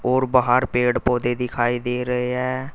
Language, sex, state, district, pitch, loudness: Hindi, male, Uttar Pradesh, Saharanpur, 125 Hz, -21 LUFS